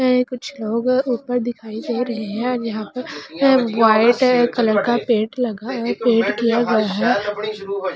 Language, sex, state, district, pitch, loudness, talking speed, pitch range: Hindi, female, Delhi, New Delhi, 235 Hz, -19 LUFS, 135 wpm, 220-250 Hz